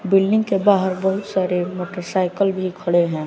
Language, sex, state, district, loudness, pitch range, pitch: Hindi, male, Bihar, West Champaran, -20 LUFS, 180-195 Hz, 185 Hz